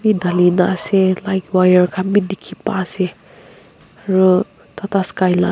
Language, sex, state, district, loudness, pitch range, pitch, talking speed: Nagamese, female, Nagaland, Kohima, -16 LUFS, 185-195 Hz, 190 Hz, 150 wpm